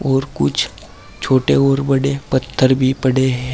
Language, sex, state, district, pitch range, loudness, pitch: Hindi, male, Uttar Pradesh, Saharanpur, 125-135 Hz, -16 LUFS, 130 Hz